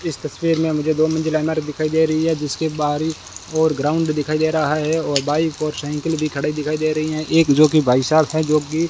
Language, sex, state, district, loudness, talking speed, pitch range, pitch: Hindi, male, Rajasthan, Bikaner, -19 LUFS, 240 wpm, 150-160 Hz, 155 Hz